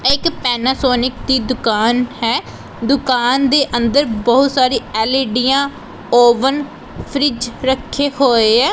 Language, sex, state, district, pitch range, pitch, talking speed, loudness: Punjabi, female, Punjab, Pathankot, 240-275 Hz, 255 Hz, 115 wpm, -15 LUFS